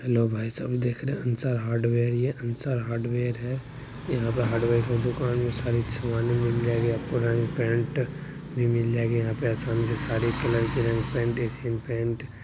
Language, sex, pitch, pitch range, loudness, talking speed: Maithili, male, 120 Hz, 115-125 Hz, -27 LUFS, 170 wpm